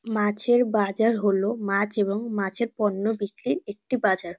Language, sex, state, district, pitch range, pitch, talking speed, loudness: Bengali, female, West Bengal, North 24 Parganas, 200-225 Hz, 210 Hz, 135 wpm, -25 LUFS